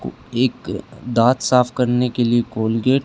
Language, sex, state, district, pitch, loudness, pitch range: Hindi, male, Haryana, Charkhi Dadri, 125 Hz, -18 LUFS, 120-125 Hz